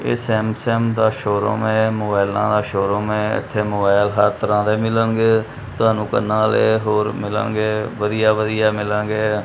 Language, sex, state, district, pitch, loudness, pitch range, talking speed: Punjabi, male, Punjab, Kapurthala, 110 Hz, -18 LUFS, 105-110 Hz, 145 wpm